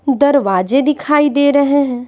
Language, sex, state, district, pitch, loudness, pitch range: Hindi, female, Bihar, Patna, 285 Hz, -13 LUFS, 270-285 Hz